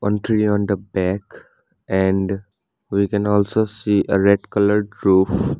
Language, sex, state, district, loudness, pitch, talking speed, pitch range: English, male, Assam, Sonitpur, -19 LUFS, 100 Hz, 150 wpm, 95-105 Hz